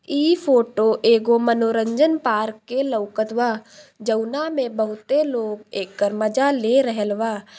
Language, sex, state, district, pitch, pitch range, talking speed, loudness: Bhojpuri, female, Bihar, Gopalganj, 230 Hz, 215-265 Hz, 135 wpm, -20 LUFS